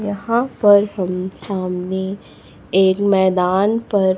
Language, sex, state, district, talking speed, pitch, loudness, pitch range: Hindi, female, Chhattisgarh, Raipur, 100 wpm, 190 Hz, -17 LUFS, 185-205 Hz